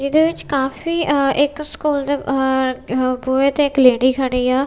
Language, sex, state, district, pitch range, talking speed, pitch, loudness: Punjabi, female, Punjab, Kapurthala, 260-290 Hz, 180 wpm, 275 Hz, -17 LUFS